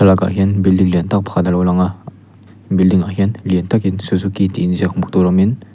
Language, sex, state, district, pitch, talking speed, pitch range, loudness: Mizo, male, Mizoram, Aizawl, 95 Hz, 220 wpm, 90-100 Hz, -15 LUFS